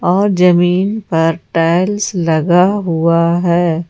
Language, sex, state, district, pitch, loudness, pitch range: Hindi, female, Jharkhand, Ranchi, 175 Hz, -13 LUFS, 165-185 Hz